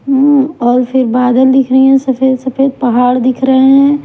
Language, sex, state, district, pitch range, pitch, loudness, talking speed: Hindi, female, Himachal Pradesh, Shimla, 250-270 Hz, 265 Hz, -10 LUFS, 175 wpm